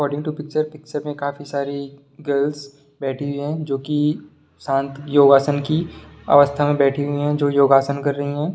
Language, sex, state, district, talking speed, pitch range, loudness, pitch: Hindi, male, Bihar, Sitamarhi, 175 wpm, 140-150 Hz, -20 LUFS, 145 Hz